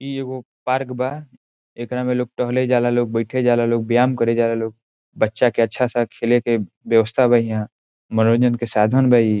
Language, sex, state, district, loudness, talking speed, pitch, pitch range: Bhojpuri, male, Bihar, Saran, -19 LUFS, 210 wpm, 120 Hz, 115-125 Hz